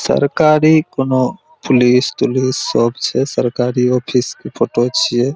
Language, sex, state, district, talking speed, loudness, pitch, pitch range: Maithili, male, Bihar, Araria, 125 wpm, -15 LUFS, 130 Hz, 125-145 Hz